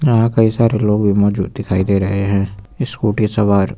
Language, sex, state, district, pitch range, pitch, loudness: Hindi, male, Uttar Pradesh, Lucknow, 100-115 Hz, 105 Hz, -16 LUFS